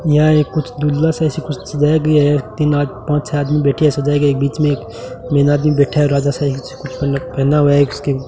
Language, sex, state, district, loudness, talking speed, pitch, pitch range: Hindi, male, Rajasthan, Bikaner, -15 LUFS, 255 wpm, 145 Hz, 140-150 Hz